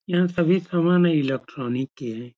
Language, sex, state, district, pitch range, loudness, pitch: Hindi, male, Uttar Pradesh, Etah, 130-175 Hz, -22 LUFS, 160 Hz